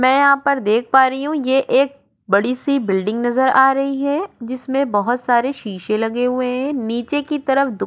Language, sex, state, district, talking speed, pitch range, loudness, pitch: Hindi, female, Goa, North and South Goa, 205 wpm, 240-275 Hz, -18 LUFS, 260 Hz